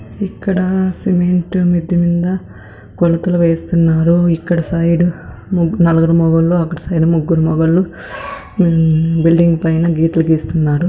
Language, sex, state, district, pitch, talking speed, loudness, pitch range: Telugu, female, Andhra Pradesh, Anantapur, 170 Hz, 110 wpm, -14 LUFS, 165-175 Hz